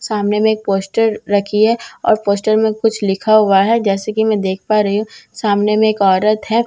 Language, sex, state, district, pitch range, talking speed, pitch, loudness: Hindi, female, Bihar, Katihar, 200-220 Hz, 235 wpm, 215 Hz, -15 LUFS